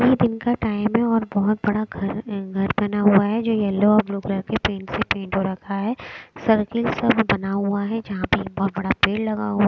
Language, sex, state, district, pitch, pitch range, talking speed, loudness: Hindi, female, Bihar, West Champaran, 205 Hz, 200-225 Hz, 250 wpm, -22 LUFS